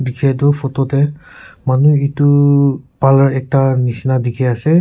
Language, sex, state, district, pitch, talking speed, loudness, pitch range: Nagamese, male, Nagaland, Kohima, 135 Hz, 135 wpm, -14 LUFS, 130-145 Hz